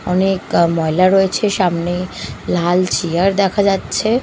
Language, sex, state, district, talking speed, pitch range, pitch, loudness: Bengali, female, Bihar, Katihar, 125 wpm, 175-195 Hz, 185 Hz, -16 LUFS